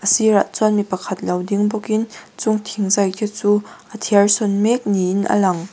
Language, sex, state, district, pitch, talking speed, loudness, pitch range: Mizo, female, Mizoram, Aizawl, 205 Hz, 210 wpm, -18 LUFS, 200-215 Hz